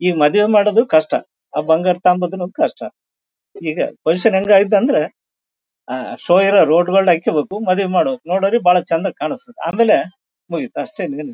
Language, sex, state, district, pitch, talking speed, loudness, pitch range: Kannada, male, Karnataka, Bellary, 180 Hz, 155 wpm, -16 LUFS, 160-205 Hz